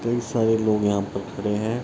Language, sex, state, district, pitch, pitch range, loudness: Hindi, male, Bihar, Araria, 110 Hz, 105-115 Hz, -23 LUFS